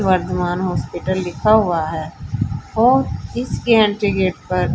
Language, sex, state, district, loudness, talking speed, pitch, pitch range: Hindi, female, Haryana, Charkhi Dadri, -18 LUFS, 125 wpm, 185 Hz, 165-210 Hz